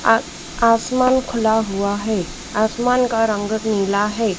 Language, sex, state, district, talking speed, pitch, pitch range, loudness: Hindi, female, Madhya Pradesh, Dhar, 135 wpm, 220 Hz, 205-230 Hz, -19 LUFS